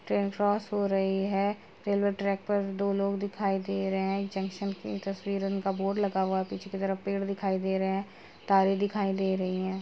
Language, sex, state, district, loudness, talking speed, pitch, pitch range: Hindi, female, Uttar Pradesh, Jalaun, -30 LUFS, 210 wpm, 195 Hz, 195-200 Hz